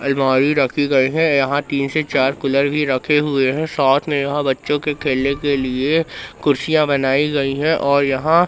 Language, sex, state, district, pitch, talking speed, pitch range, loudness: Hindi, male, Madhya Pradesh, Katni, 140 Hz, 190 wpm, 135-150 Hz, -17 LUFS